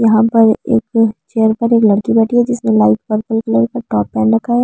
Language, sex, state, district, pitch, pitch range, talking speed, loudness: Hindi, female, Delhi, New Delhi, 225 Hz, 215-230 Hz, 235 wpm, -13 LUFS